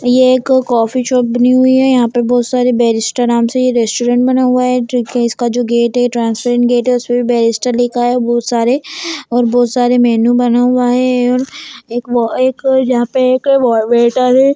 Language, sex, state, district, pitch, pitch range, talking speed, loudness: Hindi, female, Bihar, Jamui, 245 Hz, 240-255 Hz, 215 wpm, -12 LUFS